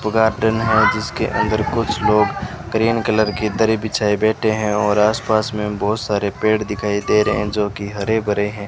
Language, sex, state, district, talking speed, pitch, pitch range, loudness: Hindi, male, Rajasthan, Bikaner, 185 wpm, 105 Hz, 105-110 Hz, -18 LUFS